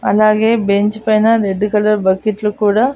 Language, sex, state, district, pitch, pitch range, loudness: Telugu, female, Andhra Pradesh, Annamaya, 215 Hz, 205-220 Hz, -14 LUFS